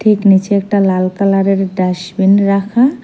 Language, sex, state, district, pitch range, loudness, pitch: Bengali, female, Assam, Hailakandi, 190-200 Hz, -13 LUFS, 195 Hz